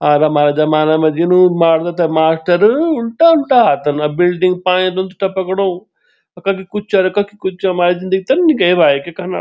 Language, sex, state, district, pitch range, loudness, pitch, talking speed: Garhwali, male, Uttarakhand, Tehri Garhwal, 165-195 Hz, -13 LUFS, 180 Hz, 190 wpm